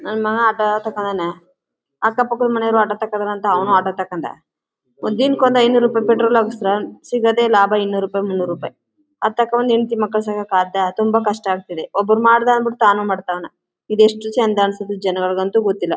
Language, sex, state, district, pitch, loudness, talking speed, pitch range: Kannada, female, Karnataka, Chamarajanagar, 215 Hz, -17 LUFS, 155 wpm, 195-230 Hz